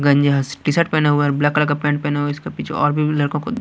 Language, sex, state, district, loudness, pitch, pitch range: Hindi, male, Chhattisgarh, Raipur, -18 LUFS, 145 Hz, 145-150 Hz